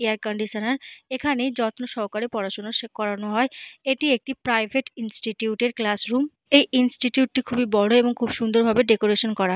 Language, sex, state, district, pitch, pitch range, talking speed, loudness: Bengali, female, Jharkhand, Jamtara, 235 Hz, 215-255 Hz, 165 wpm, -23 LUFS